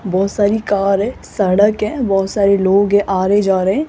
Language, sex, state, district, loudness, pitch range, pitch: Hindi, female, Rajasthan, Jaipur, -15 LUFS, 195-205 Hz, 200 Hz